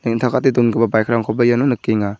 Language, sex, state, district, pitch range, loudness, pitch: Garo, male, Meghalaya, South Garo Hills, 110-125 Hz, -16 LUFS, 115 Hz